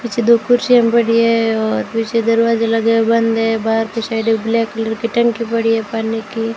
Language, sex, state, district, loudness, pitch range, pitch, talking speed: Hindi, female, Rajasthan, Jaisalmer, -15 LUFS, 225-230 Hz, 225 Hz, 220 wpm